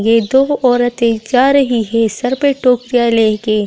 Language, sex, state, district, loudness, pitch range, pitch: Hindi, female, Delhi, New Delhi, -13 LUFS, 225-260 Hz, 245 Hz